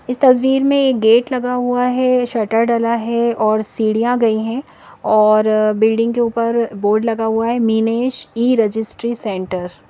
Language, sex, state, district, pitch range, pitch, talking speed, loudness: Hindi, female, Madhya Pradesh, Bhopal, 220-245 Hz, 230 Hz, 170 wpm, -16 LUFS